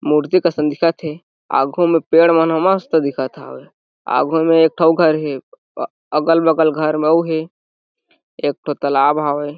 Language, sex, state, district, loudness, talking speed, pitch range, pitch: Chhattisgarhi, male, Chhattisgarh, Jashpur, -16 LUFS, 180 wpm, 145-165 Hz, 160 Hz